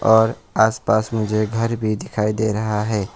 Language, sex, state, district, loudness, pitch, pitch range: Hindi, male, West Bengal, Alipurduar, -20 LUFS, 110 Hz, 105-110 Hz